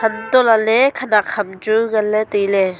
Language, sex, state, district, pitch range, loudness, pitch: Wancho, female, Arunachal Pradesh, Longding, 210-225 Hz, -16 LUFS, 215 Hz